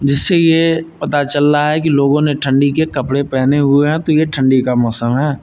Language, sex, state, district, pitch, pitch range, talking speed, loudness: Hindi, male, Uttar Pradesh, Lucknow, 145 Hz, 135-155 Hz, 230 wpm, -14 LUFS